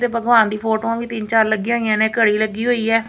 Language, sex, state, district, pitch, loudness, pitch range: Punjabi, female, Punjab, Kapurthala, 225 Hz, -17 LUFS, 220-230 Hz